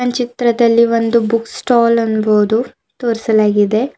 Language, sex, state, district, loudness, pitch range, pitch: Kannada, female, Karnataka, Bidar, -14 LUFS, 220-240 Hz, 230 Hz